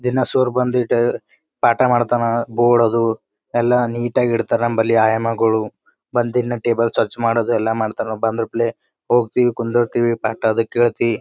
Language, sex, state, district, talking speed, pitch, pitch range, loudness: Kannada, male, Karnataka, Gulbarga, 145 wpm, 115 Hz, 115-120 Hz, -18 LUFS